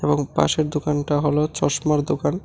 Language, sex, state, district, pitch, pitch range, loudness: Bengali, male, Tripura, West Tripura, 150 Hz, 145-155 Hz, -21 LUFS